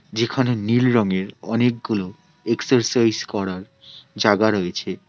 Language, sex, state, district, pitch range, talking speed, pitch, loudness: Bengali, male, West Bengal, Alipurduar, 105-125 Hz, 95 wpm, 115 Hz, -21 LUFS